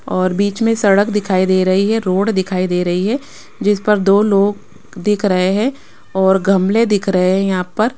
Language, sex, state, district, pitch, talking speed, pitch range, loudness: Hindi, female, Rajasthan, Jaipur, 195 Hz, 205 wpm, 185-210 Hz, -15 LUFS